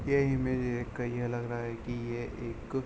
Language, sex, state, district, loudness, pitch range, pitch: Hindi, male, Uttar Pradesh, Jalaun, -33 LUFS, 120-130 Hz, 120 Hz